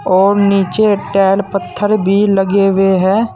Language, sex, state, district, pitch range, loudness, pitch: Hindi, male, Uttar Pradesh, Saharanpur, 195-205 Hz, -12 LUFS, 195 Hz